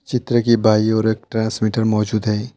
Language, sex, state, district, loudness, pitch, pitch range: Hindi, male, West Bengal, Alipurduar, -18 LUFS, 110 Hz, 110-115 Hz